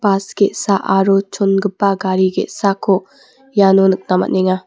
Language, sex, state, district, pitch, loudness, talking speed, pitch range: Garo, female, Meghalaya, West Garo Hills, 195 Hz, -15 LUFS, 115 wpm, 190-200 Hz